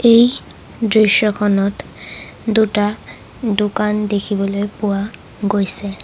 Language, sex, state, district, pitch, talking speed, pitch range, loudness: Assamese, female, Assam, Sonitpur, 210 Hz, 70 wpm, 200-220 Hz, -17 LUFS